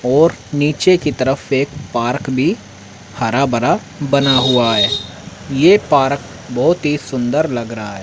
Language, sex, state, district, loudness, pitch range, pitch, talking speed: Hindi, male, Haryana, Rohtak, -15 LUFS, 125-145 Hz, 135 Hz, 150 wpm